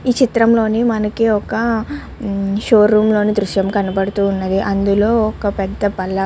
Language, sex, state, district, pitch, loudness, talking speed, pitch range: Telugu, male, Andhra Pradesh, Guntur, 210 Hz, -16 LUFS, 145 wpm, 195-225 Hz